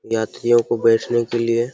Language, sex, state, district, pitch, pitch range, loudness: Hindi, male, Bihar, Saharsa, 115 Hz, 115-120 Hz, -18 LUFS